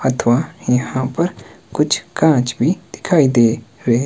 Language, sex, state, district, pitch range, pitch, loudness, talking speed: Hindi, male, Himachal Pradesh, Shimla, 120-150 Hz, 125 Hz, -17 LUFS, 135 wpm